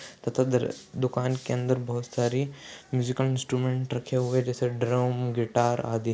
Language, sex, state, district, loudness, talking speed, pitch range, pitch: Hindi, male, Maharashtra, Solapur, -28 LUFS, 145 wpm, 120-130 Hz, 125 Hz